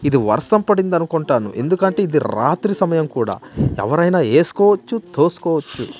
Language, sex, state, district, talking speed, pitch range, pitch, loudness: Telugu, male, Andhra Pradesh, Manyam, 110 wpm, 150-195 Hz, 170 Hz, -17 LUFS